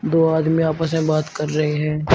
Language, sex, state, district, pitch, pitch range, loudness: Hindi, male, Uttar Pradesh, Shamli, 155 Hz, 150-160 Hz, -19 LUFS